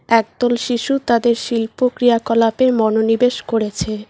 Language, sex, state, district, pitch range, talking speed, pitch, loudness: Bengali, female, West Bengal, Cooch Behar, 225-245 Hz, 105 wpm, 235 Hz, -17 LUFS